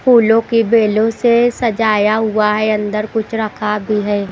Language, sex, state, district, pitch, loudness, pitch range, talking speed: Hindi, female, Bihar, Katihar, 220 Hz, -14 LUFS, 210-230 Hz, 165 wpm